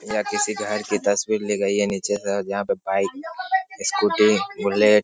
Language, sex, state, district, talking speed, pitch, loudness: Hindi, male, Bihar, Jamui, 200 wpm, 105 Hz, -22 LUFS